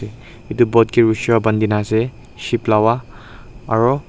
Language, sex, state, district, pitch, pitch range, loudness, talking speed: Nagamese, male, Nagaland, Dimapur, 115 Hz, 110-120 Hz, -17 LUFS, 75 wpm